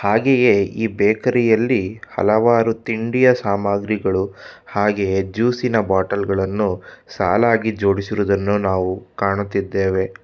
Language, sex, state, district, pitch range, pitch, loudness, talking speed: Kannada, male, Karnataka, Bangalore, 95-115 Hz, 100 Hz, -18 LUFS, 95 wpm